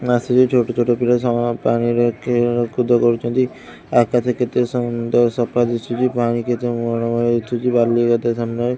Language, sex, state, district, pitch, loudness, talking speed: Odia, male, Odisha, Khordha, 120 Hz, -18 LUFS, 150 wpm